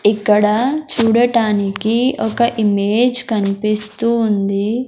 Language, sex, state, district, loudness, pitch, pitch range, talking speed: Telugu, male, Andhra Pradesh, Sri Satya Sai, -15 LUFS, 220 Hz, 210-235 Hz, 75 wpm